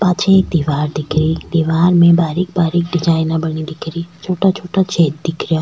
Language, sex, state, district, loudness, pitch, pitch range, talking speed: Rajasthani, female, Rajasthan, Churu, -15 LUFS, 170 Hz, 160-180 Hz, 190 wpm